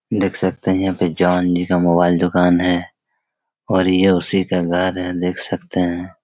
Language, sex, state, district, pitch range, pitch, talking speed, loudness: Hindi, male, Chhattisgarh, Raigarh, 90-95 Hz, 90 Hz, 190 wpm, -17 LUFS